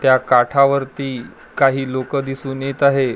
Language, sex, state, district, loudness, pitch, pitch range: Marathi, male, Maharashtra, Gondia, -17 LUFS, 135 Hz, 130-140 Hz